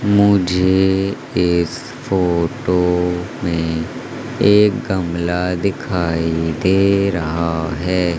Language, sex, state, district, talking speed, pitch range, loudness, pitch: Hindi, male, Madhya Pradesh, Umaria, 75 wpm, 85-95 Hz, -17 LUFS, 90 Hz